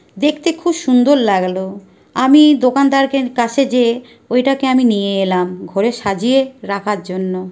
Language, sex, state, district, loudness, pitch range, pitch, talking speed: Bengali, male, West Bengal, Jhargram, -14 LUFS, 195-270 Hz, 245 Hz, 145 wpm